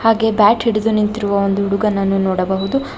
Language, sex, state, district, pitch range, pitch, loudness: Kannada, female, Karnataka, Bangalore, 195-220 Hz, 205 Hz, -16 LUFS